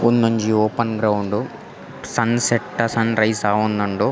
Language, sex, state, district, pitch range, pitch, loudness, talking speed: Tulu, male, Karnataka, Dakshina Kannada, 105-115 Hz, 110 Hz, -19 LUFS, 85 wpm